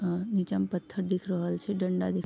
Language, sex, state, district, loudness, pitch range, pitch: Maithili, female, Bihar, Vaishali, -31 LUFS, 175-190 Hz, 180 Hz